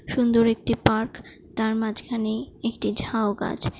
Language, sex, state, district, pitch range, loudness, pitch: Bengali, female, West Bengal, Jalpaiguri, 220-235 Hz, -24 LUFS, 225 Hz